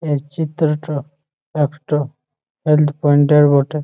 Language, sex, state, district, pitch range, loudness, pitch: Bengali, male, West Bengal, Malda, 145-150 Hz, -17 LUFS, 150 Hz